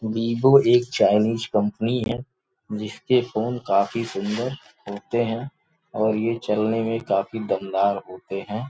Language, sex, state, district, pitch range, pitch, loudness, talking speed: Hindi, male, Uttar Pradesh, Gorakhpur, 105-120 Hz, 115 Hz, -23 LUFS, 130 wpm